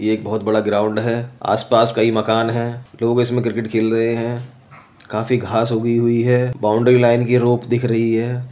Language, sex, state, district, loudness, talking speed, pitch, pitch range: Hindi, male, Uttar Pradesh, Jyotiba Phule Nagar, -17 LUFS, 195 wpm, 115 Hz, 110-120 Hz